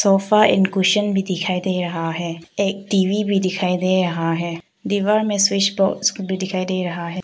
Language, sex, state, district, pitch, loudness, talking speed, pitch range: Hindi, female, Arunachal Pradesh, Papum Pare, 190 Hz, -19 LUFS, 200 wpm, 180-200 Hz